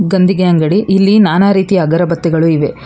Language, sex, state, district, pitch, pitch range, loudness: Kannada, female, Karnataka, Bangalore, 185 Hz, 170-195 Hz, -11 LUFS